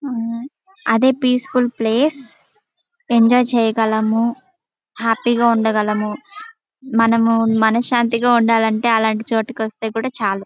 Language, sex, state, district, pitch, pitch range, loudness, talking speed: Telugu, female, Andhra Pradesh, Chittoor, 230 Hz, 225-255 Hz, -17 LUFS, 95 wpm